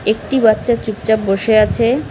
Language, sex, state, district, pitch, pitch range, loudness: Bengali, female, West Bengal, Cooch Behar, 220 Hz, 215-230 Hz, -15 LUFS